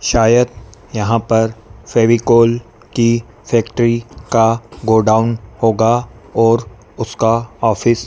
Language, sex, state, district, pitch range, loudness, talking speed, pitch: Hindi, male, Madhya Pradesh, Dhar, 110-115 Hz, -15 LUFS, 95 wpm, 115 Hz